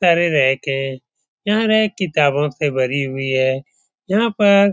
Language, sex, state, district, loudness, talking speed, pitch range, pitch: Hindi, male, Uttar Pradesh, Etah, -18 LUFS, 65 wpm, 135-200 Hz, 150 Hz